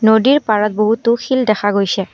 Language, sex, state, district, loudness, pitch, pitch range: Assamese, female, Assam, Kamrup Metropolitan, -14 LUFS, 220 Hz, 210-235 Hz